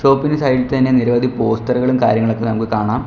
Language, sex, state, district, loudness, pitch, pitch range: Malayalam, male, Kerala, Kollam, -16 LUFS, 125 Hz, 115-130 Hz